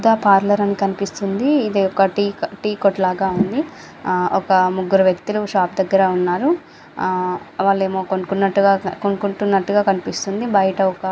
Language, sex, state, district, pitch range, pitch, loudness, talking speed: Telugu, female, Andhra Pradesh, Srikakulam, 190-205 Hz, 195 Hz, -18 LUFS, 140 wpm